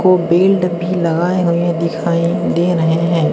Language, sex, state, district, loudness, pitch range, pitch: Hindi, male, Maharashtra, Gondia, -15 LUFS, 165-180 Hz, 170 Hz